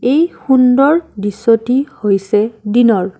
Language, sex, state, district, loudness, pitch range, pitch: Assamese, female, Assam, Kamrup Metropolitan, -13 LUFS, 210-265 Hz, 235 Hz